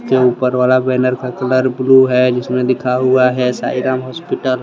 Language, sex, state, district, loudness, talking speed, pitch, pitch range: Hindi, male, Jharkhand, Deoghar, -14 LUFS, 210 wpm, 130 Hz, 125-130 Hz